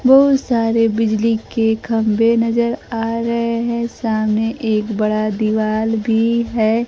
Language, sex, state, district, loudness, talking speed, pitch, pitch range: Hindi, female, Bihar, Kaimur, -17 LUFS, 130 wpm, 225 Hz, 220-235 Hz